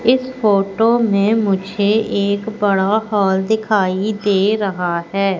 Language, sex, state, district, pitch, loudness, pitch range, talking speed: Hindi, female, Madhya Pradesh, Katni, 205 Hz, -16 LUFS, 195-220 Hz, 120 wpm